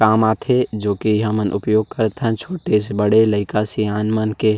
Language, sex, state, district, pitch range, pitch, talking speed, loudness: Chhattisgarhi, male, Chhattisgarh, Rajnandgaon, 105-110 Hz, 110 Hz, 185 wpm, -18 LUFS